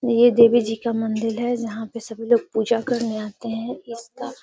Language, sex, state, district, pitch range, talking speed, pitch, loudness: Hindi, female, Bihar, Gaya, 225-240 Hz, 230 wpm, 230 Hz, -21 LUFS